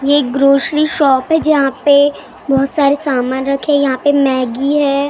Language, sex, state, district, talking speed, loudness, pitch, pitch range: Hindi, female, Maharashtra, Gondia, 165 wpm, -13 LUFS, 280 Hz, 270-290 Hz